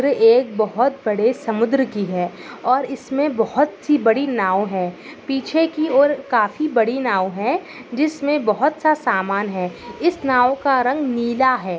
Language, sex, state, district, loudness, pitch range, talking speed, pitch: Hindi, female, Maharashtra, Pune, -19 LUFS, 215-285 Hz, 160 wpm, 255 Hz